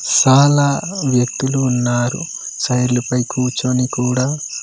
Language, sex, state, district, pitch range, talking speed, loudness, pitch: Telugu, male, Andhra Pradesh, Manyam, 125-140 Hz, 90 wpm, -16 LUFS, 130 Hz